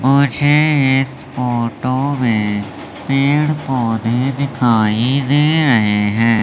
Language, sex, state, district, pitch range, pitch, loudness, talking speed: Hindi, male, Madhya Pradesh, Umaria, 115-140 Hz, 130 Hz, -15 LUFS, 95 wpm